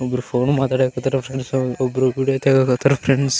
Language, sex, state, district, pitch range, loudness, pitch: Kannada, male, Karnataka, Raichur, 125-135 Hz, -19 LUFS, 130 Hz